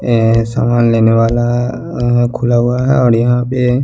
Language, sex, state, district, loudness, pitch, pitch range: Hindi, male, Chandigarh, Chandigarh, -13 LUFS, 120 Hz, 115-125 Hz